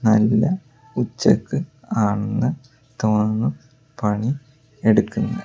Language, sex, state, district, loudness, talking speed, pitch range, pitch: Malayalam, male, Kerala, Kozhikode, -21 LUFS, 65 wpm, 110-135 Hz, 125 Hz